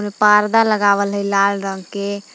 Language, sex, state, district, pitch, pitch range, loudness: Magahi, female, Jharkhand, Palamu, 200 Hz, 200-210 Hz, -16 LUFS